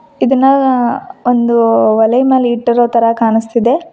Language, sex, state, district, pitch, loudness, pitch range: Kannada, female, Karnataka, Koppal, 240 Hz, -11 LUFS, 230-260 Hz